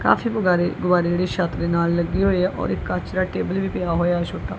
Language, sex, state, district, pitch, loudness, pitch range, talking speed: Punjabi, female, Punjab, Kapurthala, 175 Hz, -21 LUFS, 170-185 Hz, 250 wpm